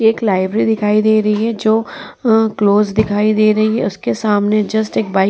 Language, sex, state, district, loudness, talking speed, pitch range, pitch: Hindi, female, Uttar Pradesh, Muzaffarnagar, -15 LUFS, 215 wpm, 210-220 Hz, 215 Hz